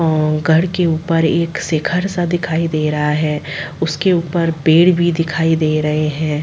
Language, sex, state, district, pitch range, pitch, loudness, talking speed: Hindi, female, Chhattisgarh, Sarguja, 155-170 Hz, 160 Hz, -16 LUFS, 175 wpm